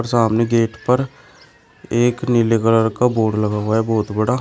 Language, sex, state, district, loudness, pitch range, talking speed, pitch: Hindi, male, Uttar Pradesh, Shamli, -17 LUFS, 110-120 Hz, 175 wpm, 115 Hz